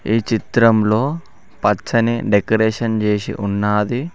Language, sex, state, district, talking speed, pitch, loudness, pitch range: Telugu, male, Telangana, Mahabubabad, 85 wpm, 110 Hz, -17 LUFS, 105-115 Hz